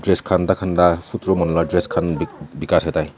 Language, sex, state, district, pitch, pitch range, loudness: Nagamese, male, Nagaland, Kohima, 90 Hz, 85-95 Hz, -19 LUFS